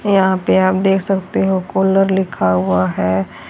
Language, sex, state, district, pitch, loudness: Hindi, female, Haryana, Charkhi Dadri, 190 Hz, -16 LUFS